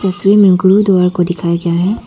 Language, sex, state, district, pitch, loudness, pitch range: Hindi, female, Arunachal Pradesh, Papum Pare, 185 Hz, -11 LUFS, 175-200 Hz